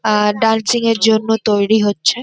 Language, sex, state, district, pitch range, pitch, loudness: Bengali, female, West Bengal, North 24 Parganas, 210-225 Hz, 220 Hz, -14 LUFS